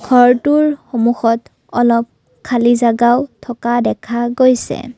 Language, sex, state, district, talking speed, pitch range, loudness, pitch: Assamese, female, Assam, Kamrup Metropolitan, 95 wpm, 235-250 Hz, -14 LUFS, 240 Hz